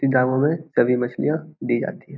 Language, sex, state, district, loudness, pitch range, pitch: Hindi, male, Bihar, Samastipur, -22 LUFS, 125-155 Hz, 135 Hz